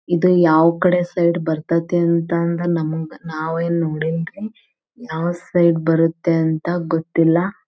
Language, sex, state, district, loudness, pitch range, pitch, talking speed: Kannada, female, Karnataka, Belgaum, -18 LUFS, 165-175 Hz, 170 Hz, 100 wpm